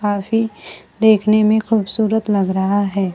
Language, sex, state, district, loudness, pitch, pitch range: Hindi, female, Bihar, Kaimur, -16 LUFS, 210 Hz, 200-220 Hz